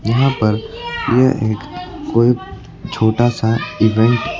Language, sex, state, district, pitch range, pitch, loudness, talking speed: Hindi, male, Uttar Pradesh, Lucknow, 110-125 Hz, 115 Hz, -16 LUFS, 125 wpm